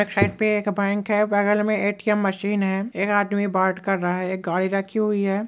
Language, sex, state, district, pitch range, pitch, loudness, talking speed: Hindi, male, West Bengal, Purulia, 195-205 Hz, 205 Hz, -22 LUFS, 230 wpm